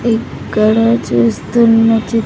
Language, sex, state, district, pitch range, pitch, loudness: Telugu, female, Andhra Pradesh, Sri Satya Sai, 215-230 Hz, 225 Hz, -12 LUFS